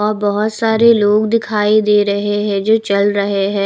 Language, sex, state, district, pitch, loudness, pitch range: Hindi, female, Haryana, Rohtak, 210 Hz, -14 LUFS, 200-215 Hz